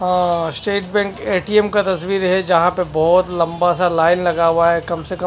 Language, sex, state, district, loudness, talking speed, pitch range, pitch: Hindi, male, Punjab, Fazilka, -17 LUFS, 215 wpm, 170-190 Hz, 180 Hz